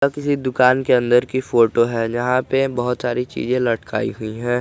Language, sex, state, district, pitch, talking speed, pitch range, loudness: Hindi, male, Jharkhand, Garhwa, 125 Hz, 210 wpm, 120-130 Hz, -19 LUFS